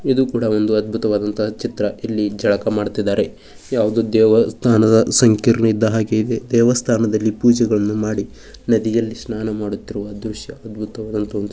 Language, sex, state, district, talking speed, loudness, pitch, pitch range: Kannada, male, Karnataka, Bijapur, 115 wpm, -18 LUFS, 110 Hz, 105-115 Hz